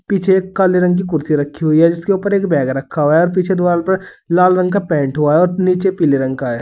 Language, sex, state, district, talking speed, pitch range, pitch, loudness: Hindi, male, Uttar Pradesh, Saharanpur, 290 wpm, 150-190 Hz, 180 Hz, -15 LUFS